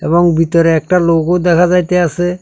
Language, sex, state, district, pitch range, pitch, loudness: Bengali, male, Tripura, South Tripura, 165-180 Hz, 175 Hz, -12 LUFS